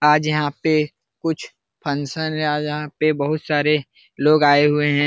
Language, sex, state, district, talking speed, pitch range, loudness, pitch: Hindi, male, Bihar, Jahanabad, 180 wpm, 145-155 Hz, -20 LUFS, 150 Hz